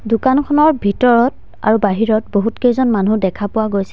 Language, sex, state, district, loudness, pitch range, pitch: Assamese, female, Assam, Sonitpur, -15 LUFS, 205-245 Hz, 220 Hz